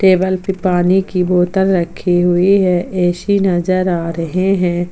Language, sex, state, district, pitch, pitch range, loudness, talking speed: Hindi, female, Jharkhand, Palamu, 180 Hz, 175-190 Hz, -15 LUFS, 160 wpm